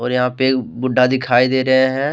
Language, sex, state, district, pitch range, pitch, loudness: Hindi, male, Jharkhand, Deoghar, 125-130 Hz, 130 Hz, -16 LUFS